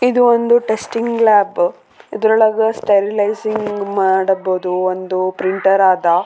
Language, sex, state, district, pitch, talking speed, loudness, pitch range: Kannada, female, Karnataka, Raichur, 205 Hz, 105 wpm, -15 LUFS, 190-220 Hz